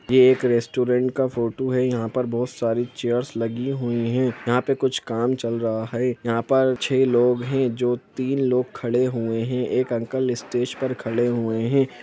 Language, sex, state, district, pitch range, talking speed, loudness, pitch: Hindi, male, Jharkhand, Sahebganj, 120-130 Hz, 195 wpm, -22 LUFS, 125 Hz